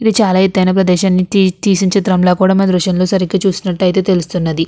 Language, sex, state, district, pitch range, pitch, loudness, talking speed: Telugu, female, Andhra Pradesh, Krishna, 180-195 Hz, 190 Hz, -13 LUFS, 165 wpm